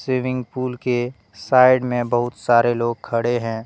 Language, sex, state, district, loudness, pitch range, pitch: Hindi, male, Jharkhand, Deoghar, -19 LUFS, 120-125 Hz, 120 Hz